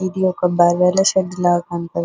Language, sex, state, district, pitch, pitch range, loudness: Telugu, female, Telangana, Nalgonda, 180 Hz, 175-185 Hz, -17 LUFS